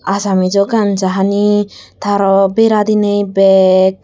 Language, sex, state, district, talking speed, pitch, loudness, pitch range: Chakma, female, Tripura, Dhalai, 120 wpm, 200 Hz, -12 LUFS, 195-205 Hz